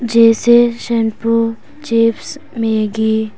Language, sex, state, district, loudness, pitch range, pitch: Hindi, female, Arunachal Pradesh, Papum Pare, -14 LUFS, 220-235 Hz, 230 Hz